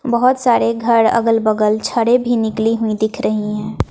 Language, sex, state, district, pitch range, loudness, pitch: Hindi, female, Bihar, West Champaran, 220-235 Hz, -16 LUFS, 225 Hz